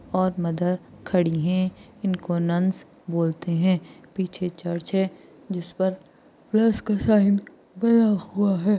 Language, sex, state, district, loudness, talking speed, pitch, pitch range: Hindi, female, Maharashtra, Aurangabad, -24 LUFS, 135 wpm, 185 Hz, 175-200 Hz